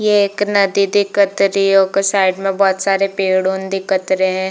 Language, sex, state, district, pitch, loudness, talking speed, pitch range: Hindi, female, Chhattisgarh, Bilaspur, 195 Hz, -15 LUFS, 200 wpm, 190-200 Hz